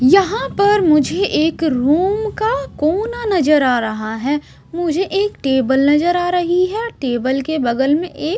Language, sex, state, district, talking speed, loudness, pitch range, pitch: Hindi, female, Odisha, Sambalpur, 165 wpm, -16 LUFS, 275-390 Hz, 325 Hz